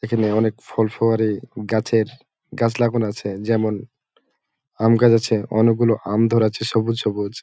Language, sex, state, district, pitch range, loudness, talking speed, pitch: Bengali, male, West Bengal, Malda, 110-115 Hz, -20 LUFS, 145 wpm, 110 Hz